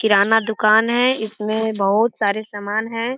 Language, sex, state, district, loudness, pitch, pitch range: Hindi, male, Bihar, Jamui, -18 LUFS, 220 Hz, 210-225 Hz